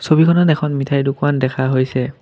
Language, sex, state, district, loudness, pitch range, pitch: Assamese, male, Assam, Kamrup Metropolitan, -16 LUFS, 130-150 Hz, 140 Hz